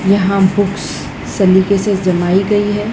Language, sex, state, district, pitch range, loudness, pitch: Hindi, female, Madhya Pradesh, Dhar, 190-205 Hz, -14 LUFS, 200 Hz